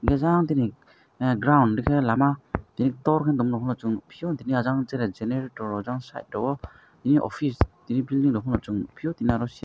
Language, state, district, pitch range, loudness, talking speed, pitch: Kokborok, Tripura, West Tripura, 115-140 Hz, -25 LUFS, 185 wpm, 125 Hz